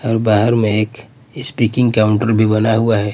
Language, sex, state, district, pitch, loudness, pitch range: Hindi, male, Bihar, Patna, 115 Hz, -15 LUFS, 110-120 Hz